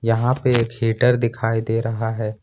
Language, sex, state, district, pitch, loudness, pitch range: Hindi, male, Jharkhand, Ranchi, 115 Hz, -20 LUFS, 115-120 Hz